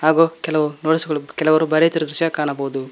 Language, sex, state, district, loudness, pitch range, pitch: Kannada, male, Karnataka, Koppal, -18 LUFS, 150-160 Hz, 155 Hz